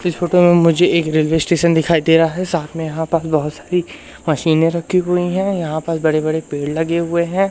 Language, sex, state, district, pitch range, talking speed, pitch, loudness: Hindi, male, Madhya Pradesh, Umaria, 160-175 Hz, 230 wpm, 165 Hz, -16 LUFS